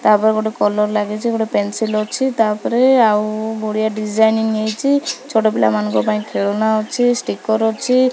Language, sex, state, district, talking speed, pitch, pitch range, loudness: Odia, female, Odisha, Khordha, 155 wpm, 220 Hz, 210-225 Hz, -17 LUFS